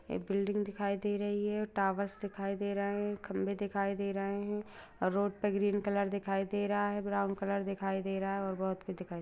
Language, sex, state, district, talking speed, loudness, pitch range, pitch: Hindi, female, Bihar, Lakhisarai, 235 wpm, -35 LUFS, 195-205 Hz, 200 Hz